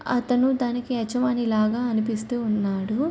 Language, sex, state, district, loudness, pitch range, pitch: Telugu, female, Andhra Pradesh, Chittoor, -24 LUFS, 220-250 Hz, 240 Hz